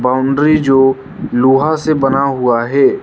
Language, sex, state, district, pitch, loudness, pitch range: Hindi, male, Arunachal Pradesh, Lower Dibang Valley, 135 Hz, -12 LUFS, 130-155 Hz